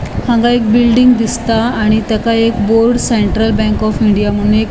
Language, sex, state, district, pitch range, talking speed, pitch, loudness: Konkani, female, Goa, North and South Goa, 215-235 Hz, 190 wpm, 225 Hz, -12 LUFS